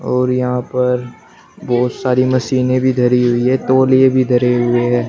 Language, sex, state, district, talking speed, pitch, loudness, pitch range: Hindi, male, Uttar Pradesh, Shamli, 175 wpm, 125 Hz, -14 LUFS, 125-130 Hz